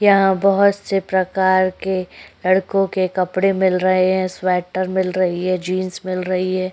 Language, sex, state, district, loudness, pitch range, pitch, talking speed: Hindi, female, Uttar Pradesh, Jyotiba Phule Nagar, -18 LUFS, 185-190 Hz, 185 Hz, 170 wpm